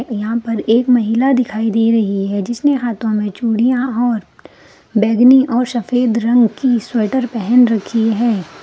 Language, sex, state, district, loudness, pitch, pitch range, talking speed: Hindi, female, Bihar, Begusarai, -15 LUFS, 230 Hz, 220-245 Hz, 155 wpm